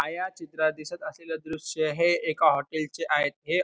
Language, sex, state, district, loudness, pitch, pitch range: Marathi, male, Maharashtra, Pune, -27 LUFS, 160 Hz, 155-170 Hz